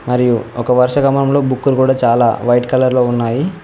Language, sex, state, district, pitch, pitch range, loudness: Telugu, male, Telangana, Mahabubabad, 125 Hz, 120-135 Hz, -14 LUFS